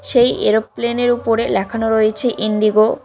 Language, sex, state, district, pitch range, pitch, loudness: Bengali, female, West Bengal, Cooch Behar, 215-240 Hz, 225 Hz, -16 LUFS